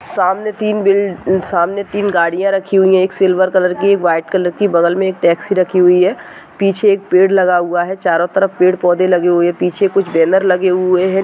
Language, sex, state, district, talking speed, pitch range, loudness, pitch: Hindi, female, Bihar, Saharsa, 225 wpm, 180-195 Hz, -13 LUFS, 185 Hz